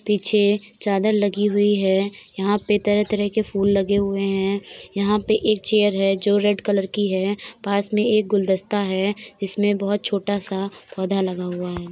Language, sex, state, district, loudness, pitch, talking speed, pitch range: Hindi, female, Uttar Pradesh, Hamirpur, -21 LUFS, 205 Hz, 185 wpm, 195-210 Hz